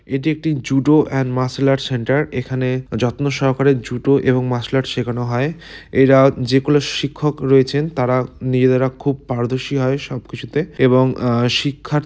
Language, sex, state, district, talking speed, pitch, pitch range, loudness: Bengali, male, West Bengal, Malda, 160 wpm, 135 Hz, 125-140 Hz, -17 LUFS